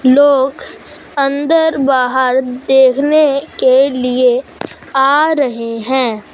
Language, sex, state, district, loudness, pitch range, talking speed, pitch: Hindi, female, Punjab, Fazilka, -13 LUFS, 255-285 Hz, 85 wpm, 270 Hz